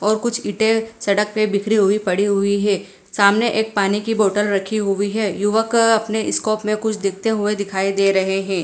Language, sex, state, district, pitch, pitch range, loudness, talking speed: Hindi, female, Punjab, Fazilka, 205 Hz, 200-220 Hz, -18 LUFS, 200 wpm